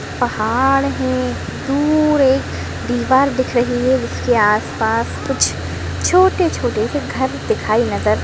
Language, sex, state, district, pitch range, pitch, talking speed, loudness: Hindi, female, Uttarakhand, Tehri Garhwal, 220-275 Hz, 255 Hz, 130 wpm, -17 LUFS